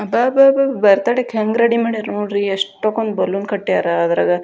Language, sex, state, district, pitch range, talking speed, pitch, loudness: Kannada, female, Karnataka, Dharwad, 195-235 Hz, 150 wpm, 205 Hz, -16 LUFS